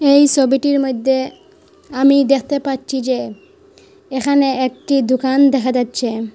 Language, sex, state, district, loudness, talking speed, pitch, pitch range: Bengali, female, Assam, Hailakandi, -16 LUFS, 115 wpm, 270 Hz, 260-280 Hz